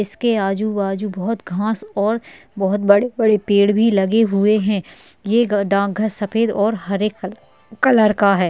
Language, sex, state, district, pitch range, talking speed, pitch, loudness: Hindi, female, Maharashtra, Chandrapur, 200-220 Hz, 155 wpm, 210 Hz, -18 LUFS